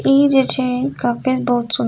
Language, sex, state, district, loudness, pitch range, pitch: Maithili, female, Bihar, Sitamarhi, -16 LUFS, 245-270 Hz, 255 Hz